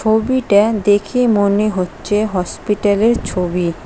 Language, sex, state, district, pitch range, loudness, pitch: Bengali, female, West Bengal, Cooch Behar, 200-220 Hz, -16 LUFS, 205 Hz